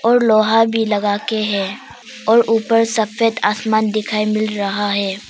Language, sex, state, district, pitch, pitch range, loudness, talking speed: Hindi, female, Arunachal Pradesh, Papum Pare, 215 Hz, 205-225 Hz, -16 LUFS, 145 wpm